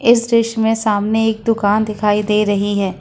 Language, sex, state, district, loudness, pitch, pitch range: Hindi, female, Jharkhand, Ranchi, -16 LUFS, 215 Hz, 205-225 Hz